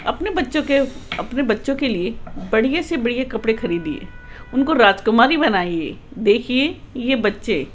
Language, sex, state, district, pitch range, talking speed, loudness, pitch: Hindi, male, Rajasthan, Jaipur, 220-280 Hz, 145 wpm, -19 LUFS, 250 Hz